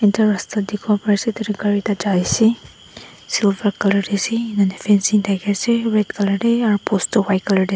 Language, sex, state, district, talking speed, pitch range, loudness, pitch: Nagamese, female, Nagaland, Dimapur, 210 wpm, 200-215 Hz, -18 LUFS, 205 Hz